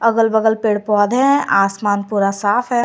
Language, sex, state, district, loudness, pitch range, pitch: Hindi, female, Jharkhand, Garhwa, -16 LUFS, 205-230 Hz, 215 Hz